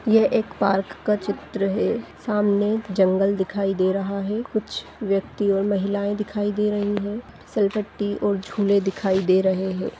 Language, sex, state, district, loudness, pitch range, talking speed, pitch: Hindi, female, Chhattisgarh, Bastar, -23 LUFS, 195-210 Hz, 175 wpm, 200 Hz